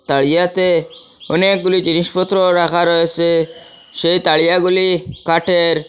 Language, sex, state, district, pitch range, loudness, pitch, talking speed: Bengali, male, Assam, Hailakandi, 165-185 Hz, -14 LUFS, 170 Hz, 90 wpm